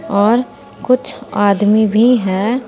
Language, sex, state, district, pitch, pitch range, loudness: Hindi, female, Uttar Pradesh, Saharanpur, 220 Hz, 205-245 Hz, -14 LUFS